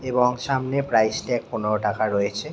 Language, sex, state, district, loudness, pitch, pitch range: Bengali, male, West Bengal, Jhargram, -23 LUFS, 120 Hz, 110-130 Hz